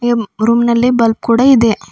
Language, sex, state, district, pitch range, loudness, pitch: Kannada, female, Karnataka, Bidar, 225-240 Hz, -12 LUFS, 235 Hz